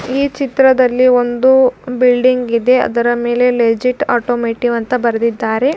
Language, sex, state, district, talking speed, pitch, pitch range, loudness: Kannada, female, Karnataka, Dharwad, 105 wpm, 245 Hz, 240-255 Hz, -13 LUFS